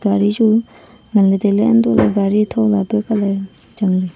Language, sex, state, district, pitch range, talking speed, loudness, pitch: Wancho, female, Arunachal Pradesh, Longding, 195-215 Hz, 230 wpm, -15 LUFS, 200 Hz